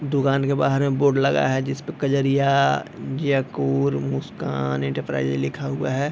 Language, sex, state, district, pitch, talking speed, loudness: Hindi, male, Uttar Pradesh, Deoria, 135 Hz, 145 wpm, -22 LUFS